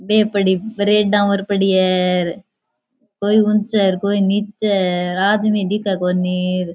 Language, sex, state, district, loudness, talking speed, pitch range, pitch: Rajasthani, female, Rajasthan, Churu, -17 LUFS, 180 wpm, 185-210 Hz, 200 Hz